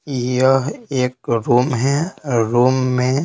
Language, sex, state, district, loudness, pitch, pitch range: Hindi, male, Bihar, Patna, -18 LUFS, 130 Hz, 125-135 Hz